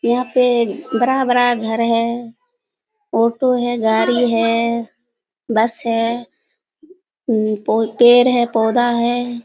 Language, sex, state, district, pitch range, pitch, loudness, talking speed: Hindi, female, Bihar, Kishanganj, 230-250 Hz, 240 Hz, -16 LUFS, 100 wpm